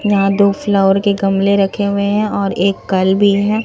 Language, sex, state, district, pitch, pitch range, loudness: Hindi, female, Bihar, Katihar, 200 Hz, 195-205 Hz, -14 LUFS